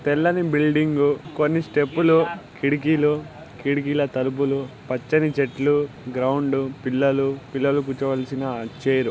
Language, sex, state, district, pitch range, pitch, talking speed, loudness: Telugu, male, Andhra Pradesh, Anantapur, 135-150 Hz, 140 Hz, 100 wpm, -22 LUFS